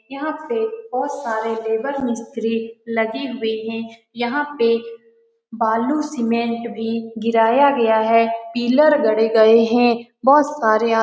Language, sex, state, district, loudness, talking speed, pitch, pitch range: Hindi, female, Bihar, Saran, -18 LUFS, 135 wpm, 230 Hz, 225-260 Hz